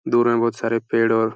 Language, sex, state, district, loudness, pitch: Hindi, male, Uttar Pradesh, Hamirpur, -20 LUFS, 115 Hz